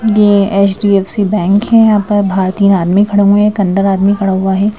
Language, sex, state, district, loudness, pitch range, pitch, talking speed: Hindi, female, Madhya Pradesh, Bhopal, -11 LUFS, 195-205 Hz, 200 Hz, 240 wpm